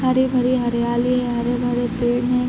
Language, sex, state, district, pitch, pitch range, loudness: Hindi, female, Jharkhand, Sahebganj, 245 Hz, 240-250 Hz, -20 LUFS